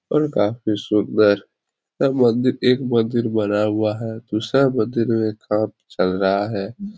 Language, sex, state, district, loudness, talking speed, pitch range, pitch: Hindi, male, Bihar, Supaul, -20 LUFS, 145 wpm, 105-120 Hz, 110 Hz